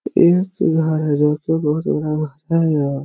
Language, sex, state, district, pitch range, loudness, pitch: Hindi, male, Chhattisgarh, Korba, 150-160 Hz, -18 LUFS, 155 Hz